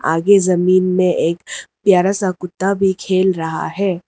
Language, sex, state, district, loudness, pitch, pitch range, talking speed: Hindi, female, Arunachal Pradesh, Lower Dibang Valley, -16 LUFS, 185 Hz, 180-195 Hz, 160 wpm